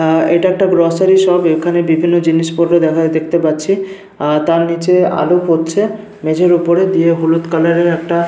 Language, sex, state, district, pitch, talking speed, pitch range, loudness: Bengali, male, West Bengal, Paschim Medinipur, 170 Hz, 165 wpm, 165-180 Hz, -13 LUFS